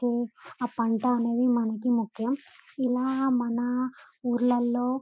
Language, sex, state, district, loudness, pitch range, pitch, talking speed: Telugu, female, Telangana, Karimnagar, -27 LUFS, 235-250 Hz, 245 Hz, 95 wpm